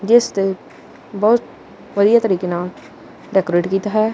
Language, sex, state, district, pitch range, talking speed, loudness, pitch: Punjabi, male, Punjab, Kapurthala, 190-215 Hz, 130 wpm, -17 LUFS, 200 Hz